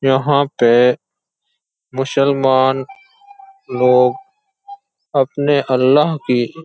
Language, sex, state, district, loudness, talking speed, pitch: Hindi, male, Uttar Pradesh, Hamirpur, -15 LUFS, 70 wpm, 140 Hz